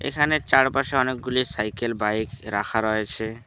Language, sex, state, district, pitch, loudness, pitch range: Bengali, male, West Bengal, Alipurduar, 120 Hz, -23 LUFS, 110-130 Hz